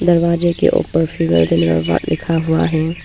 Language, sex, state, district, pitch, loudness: Hindi, female, Arunachal Pradesh, Papum Pare, 165 Hz, -15 LUFS